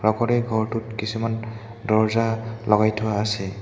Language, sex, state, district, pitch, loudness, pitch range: Assamese, male, Assam, Hailakandi, 110 Hz, -23 LUFS, 110-115 Hz